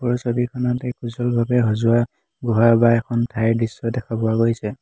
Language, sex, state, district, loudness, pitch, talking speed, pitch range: Assamese, male, Assam, Hailakandi, -20 LUFS, 115 Hz, 135 wpm, 115-120 Hz